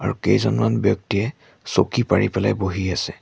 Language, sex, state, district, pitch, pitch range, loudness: Assamese, male, Assam, Sonitpur, 95 Hz, 90-115 Hz, -21 LUFS